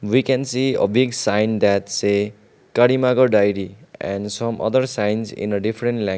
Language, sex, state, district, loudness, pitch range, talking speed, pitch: English, male, Sikkim, Gangtok, -19 LUFS, 100-125 Hz, 185 wpm, 110 Hz